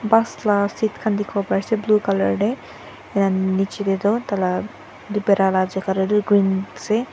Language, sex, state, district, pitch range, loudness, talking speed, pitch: Nagamese, female, Nagaland, Dimapur, 195-215 Hz, -20 LUFS, 200 wpm, 200 Hz